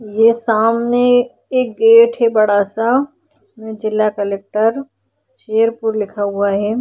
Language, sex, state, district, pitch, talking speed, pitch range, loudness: Hindi, female, Maharashtra, Chandrapur, 225 Hz, 125 wpm, 215-240 Hz, -15 LUFS